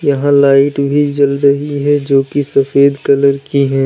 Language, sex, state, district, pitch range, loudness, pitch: Hindi, male, Uttar Pradesh, Lalitpur, 140-145 Hz, -12 LUFS, 140 Hz